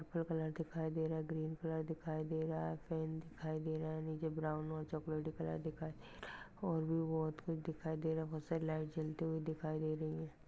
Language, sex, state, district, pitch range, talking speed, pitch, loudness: Hindi, male, Maharashtra, Pune, 155-160 Hz, 235 wpm, 160 Hz, -42 LUFS